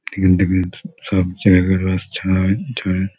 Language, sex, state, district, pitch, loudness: Bengali, male, West Bengal, Malda, 95 Hz, -17 LUFS